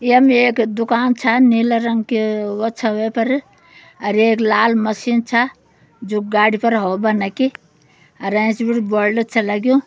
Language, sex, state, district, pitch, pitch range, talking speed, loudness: Garhwali, female, Uttarakhand, Uttarkashi, 225 Hz, 210-235 Hz, 170 wpm, -16 LUFS